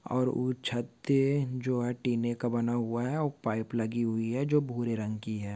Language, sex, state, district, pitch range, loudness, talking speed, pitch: Hindi, male, Maharashtra, Dhule, 115-130 Hz, -31 LUFS, 215 wpm, 120 Hz